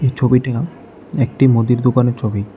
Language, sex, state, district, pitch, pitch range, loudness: Bengali, male, Tripura, West Tripura, 125 Hz, 115-125 Hz, -16 LUFS